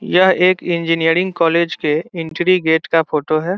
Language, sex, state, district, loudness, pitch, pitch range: Hindi, male, Bihar, Saran, -16 LUFS, 165 Hz, 160-180 Hz